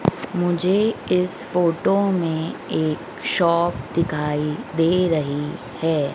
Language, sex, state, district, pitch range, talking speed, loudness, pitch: Hindi, female, Madhya Pradesh, Dhar, 155-180 Hz, 100 wpm, -21 LUFS, 170 Hz